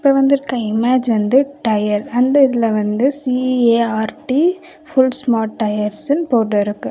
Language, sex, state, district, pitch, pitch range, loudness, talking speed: Tamil, female, Karnataka, Bangalore, 245 Hz, 220-270 Hz, -16 LUFS, 115 wpm